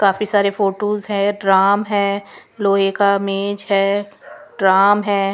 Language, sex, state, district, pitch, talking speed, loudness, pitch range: Hindi, female, Punjab, Pathankot, 200 Hz, 135 wpm, -17 LUFS, 195-205 Hz